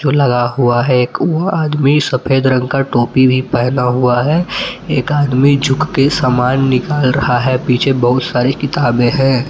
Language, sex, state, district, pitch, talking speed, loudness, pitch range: Hindi, male, Jharkhand, Palamu, 130 Hz, 170 wpm, -13 LUFS, 125-140 Hz